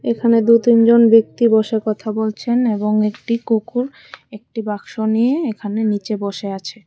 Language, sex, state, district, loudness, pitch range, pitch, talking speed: Bengali, female, Tripura, West Tripura, -17 LUFS, 210-235 Hz, 220 Hz, 140 wpm